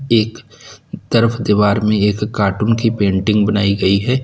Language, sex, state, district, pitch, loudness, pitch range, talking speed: Hindi, male, Uttar Pradesh, Lalitpur, 105 Hz, -15 LUFS, 105-115 Hz, 155 wpm